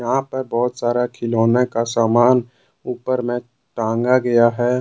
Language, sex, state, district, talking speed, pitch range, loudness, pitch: Hindi, male, Jharkhand, Deoghar, 150 wpm, 120-125 Hz, -18 LUFS, 120 Hz